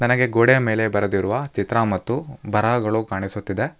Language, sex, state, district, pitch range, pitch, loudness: Kannada, male, Karnataka, Bangalore, 100-120 Hz, 110 Hz, -21 LUFS